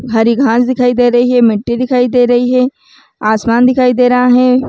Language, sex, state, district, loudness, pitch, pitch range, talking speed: Chhattisgarhi, female, Chhattisgarh, Raigarh, -11 LUFS, 250 Hz, 240-255 Hz, 230 wpm